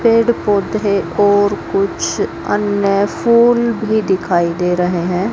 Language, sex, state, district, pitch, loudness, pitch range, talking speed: Hindi, female, Haryana, Jhajjar, 200 Hz, -15 LUFS, 190-220 Hz, 125 wpm